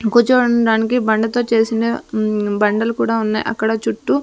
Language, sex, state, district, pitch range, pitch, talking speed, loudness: Telugu, female, Andhra Pradesh, Sri Satya Sai, 220-235 Hz, 225 Hz, 125 wpm, -17 LUFS